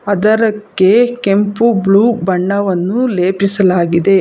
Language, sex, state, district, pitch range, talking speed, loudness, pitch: Kannada, female, Karnataka, Bangalore, 190-215 Hz, 70 wpm, -12 LUFS, 200 Hz